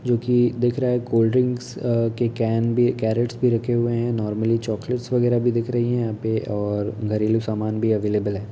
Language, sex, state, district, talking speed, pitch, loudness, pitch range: Hindi, male, Uttar Pradesh, Etah, 205 wpm, 115 Hz, -22 LUFS, 110-120 Hz